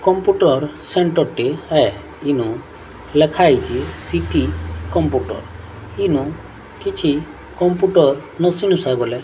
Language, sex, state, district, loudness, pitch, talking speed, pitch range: Odia, female, Odisha, Sambalpur, -18 LUFS, 155 Hz, 80 wpm, 120-185 Hz